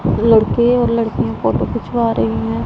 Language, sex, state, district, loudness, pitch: Hindi, female, Punjab, Pathankot, -16 LUFS, 215 Hz